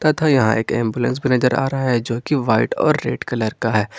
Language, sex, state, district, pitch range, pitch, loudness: Hindi, male, Jharkhand, Ranchi, 115-135 Hz, 125 Hz, -19 LUFS